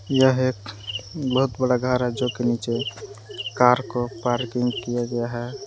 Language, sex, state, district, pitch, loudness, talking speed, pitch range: Hindi, male, Jharkhand, Palamu, 125 Hz, -23 LUFS, 160 wpm, 120-130 Hz